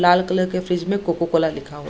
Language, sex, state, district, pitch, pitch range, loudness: Hindi, female, Bihar, Samastipur, 175 Hz, 165-180 Hz, -21 LUFS